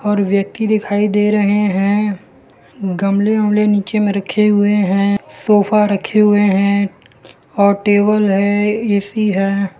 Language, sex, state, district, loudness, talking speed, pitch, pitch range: Hindi, male, Gujarat, Valsad, -15 LUFS, 135 wpm, 205 Hz, 200-210 Hz